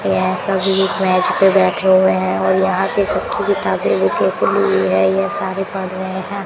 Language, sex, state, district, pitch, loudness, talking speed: Hindi, female, Rajasthan, Bikaner, 185 Hz, -16 LUFS, 165 wpm